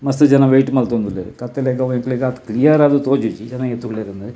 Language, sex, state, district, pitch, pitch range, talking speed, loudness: Tulu, male, Karnataka, Dakshina Kannada, 130 Hz, 120-135 Hz, 205 wpm, -16 LUFS